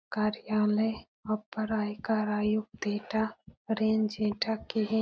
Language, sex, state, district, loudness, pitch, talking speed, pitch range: Hindi, female, Uttar Pradesh, Etah, -31 LUFS, 215 Hz, 105 wpm, 210-220 Hz